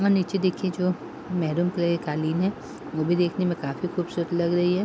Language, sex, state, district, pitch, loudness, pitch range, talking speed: Hindi, female, Uttar Pradesh, Hamirpur, 175 Hz, -26 LUFS, 170-180 Hz, 220 wpm